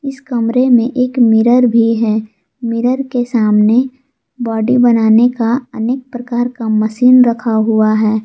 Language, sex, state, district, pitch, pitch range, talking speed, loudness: Hindi, female, Jharkhand, Palamu, 235 Hz, 225-250 Hz, 145 wpm, -13 LUFS